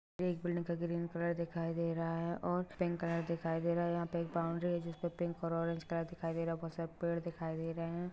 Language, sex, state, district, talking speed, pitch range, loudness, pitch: Hindi, female, Jharkhand, Jamtara, 285 wpm, 165-170 Hz, -38 LUFS, 170 Hz